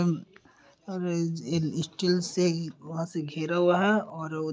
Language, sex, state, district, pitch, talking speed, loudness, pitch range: Hindi, male, Uttar Pradesh, Deoria, 165 Hz, 145 wpm, -28 LUFS, 160-180 Hz